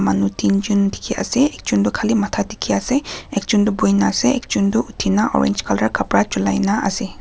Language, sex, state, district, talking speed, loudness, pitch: Nagamese, female, Nagaland, Kohima, 175 wpm, -18 LUFS, 195 Hz